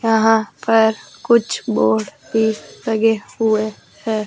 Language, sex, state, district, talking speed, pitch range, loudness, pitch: Hindi, male, Rajasthan, Jaipur, 110 wpm, 215-225 Hz, -18 LUFS, 220 Hz